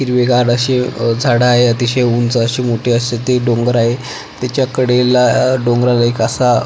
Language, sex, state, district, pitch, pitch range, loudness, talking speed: Marathi, male, Maharashtra, Pune, 125 Hz, 120-125 Hz, -13 LUFS, 160 wpm